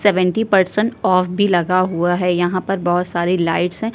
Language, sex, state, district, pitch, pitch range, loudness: Hindi, female, Uttar Pradesh, Jyotiba Phule Nagar, 185 Hz, 175-195 Hz, -17 LUFS